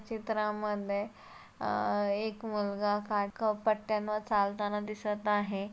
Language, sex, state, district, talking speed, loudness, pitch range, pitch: Marathi, female, Maharashtra, Solapur, 85 wpm, -33 LUFS, 205-215 Hz, 210 Hz